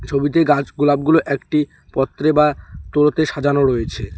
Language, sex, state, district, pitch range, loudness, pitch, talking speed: Bengali, male, West Bengal, Alipurduar, 135-150 Hz, -17 LUFS, 145 Hz, 130 wpm